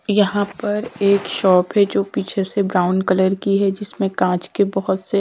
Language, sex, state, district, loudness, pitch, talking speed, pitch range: Hindi, female, Punjab, Kapurthala, -18 LUFS, 195 Hz, 195 wpm, 185-205 Hz